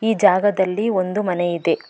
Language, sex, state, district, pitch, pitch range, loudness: Kannada, female, Karnataka, Bangalore, 190 Hz, 175-205 Hz, -19 LUFS